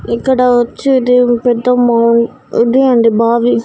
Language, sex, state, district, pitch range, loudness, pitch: Telugu, female, Andhra Pradesh, Annamaya, 235-250 Hz, -11 LUFS, 240 Hz